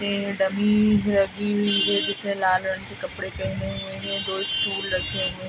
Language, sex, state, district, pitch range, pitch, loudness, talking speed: Hindi, female, Bihar, Araria, 185-205 Hz, 195 Hz, -24 LUFS, 195 wpm